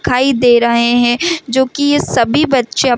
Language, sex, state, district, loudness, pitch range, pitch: Hindi, female, Chhattisgarh, Rajnandgaon, -12 LUFS, 240-285 Hz, 255 Hz